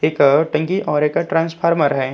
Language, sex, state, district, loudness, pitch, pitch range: Hindi, male, Uttarakhand, Tehri Garhwal, -17 LUFS, 155 Hz, 145-165 Hz